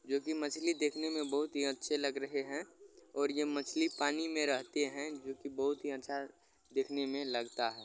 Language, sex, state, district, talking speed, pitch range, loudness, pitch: Hindi, male, Uttar Pradesh, Gorakhpur, 205 wpm, 140-150 Hz, -37 LUFS, 140 Hz